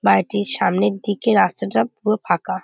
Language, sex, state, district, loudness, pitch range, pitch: Bengali, female, West Bengal, Jhargram, -19 LUFS, 185-215 Hz, 205 Hz